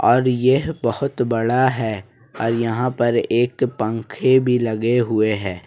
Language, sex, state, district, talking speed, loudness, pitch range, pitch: Hindi, male, Jharkhand, Ranchi, 150 wpm, -19 LUFS, 115-125 Hz, 120 Hz